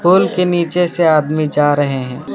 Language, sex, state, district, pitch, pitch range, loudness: Hindi, male, West Bengal, Alipurduar, 155 Hz, 145-175 Hz, -14 LUFS